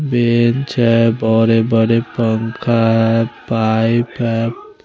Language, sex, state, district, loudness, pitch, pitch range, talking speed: Hindi, male, Chandigarh, Chandigarh, -15 LUFS, 115 Hz, 115-120 Hz, 100 wpm